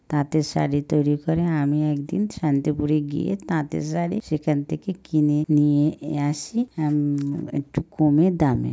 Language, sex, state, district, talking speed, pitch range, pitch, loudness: Bengali, female, West Bengal, North 24 Parganas, 130 wpm, 145-160 Hz, 150 Hz, -23 LUFS